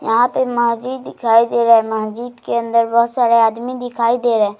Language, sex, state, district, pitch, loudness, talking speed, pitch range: Hindi, female, Bihar, Bhagalpur, 235 Hz, -16 LUFS, 220 wpm, 230-245 Hz